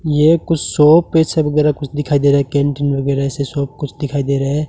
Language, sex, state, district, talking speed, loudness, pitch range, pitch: Hindi, male, Rajasthan, Bikaner, 245 wpm, -15 LUFS, 140-155 Hz, 145 Hz